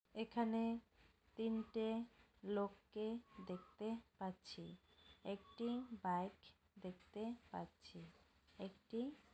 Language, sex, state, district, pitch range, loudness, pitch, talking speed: Bengali, female, West Bengal, North 24 Parganas, 180-225 Hz, -47 LUFS, 205 Hz, 70 wpm